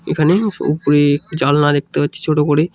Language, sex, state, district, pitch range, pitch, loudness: Bengali, male, West Bengal, Cooch Behar, 145-160 Hz, 150 Hz, -15 LUFS